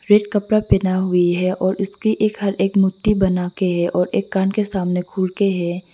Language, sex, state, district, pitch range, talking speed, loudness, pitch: Hindi, female, Arunachal Pradesh, Lower Dibang Valley, 180-205 Hz, 210 wpm, -19 LUFS, 190 Hz